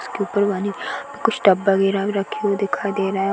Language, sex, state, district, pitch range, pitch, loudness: Hindi, female, Bihar, Gaya, 195-200 Hz, 200 Hz, -20 LUFS